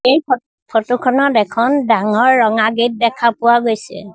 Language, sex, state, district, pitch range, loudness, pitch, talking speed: Assamese, female, Assam, Sonitpur, 220-250 Hz, -14 LUFS, 235 Hz, 145 wpm